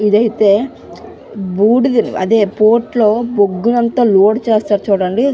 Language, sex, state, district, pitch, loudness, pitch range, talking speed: Telugu, female, Andhra Pradesh, Visakhapatnam, 215 Hz, -13 LUFS, 205-235 Hz, 110 wpm